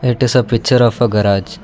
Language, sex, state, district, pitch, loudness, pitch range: English, male, Karnataka, Bangalore, 120 Hz, -14 LUFS, 110-125 Hz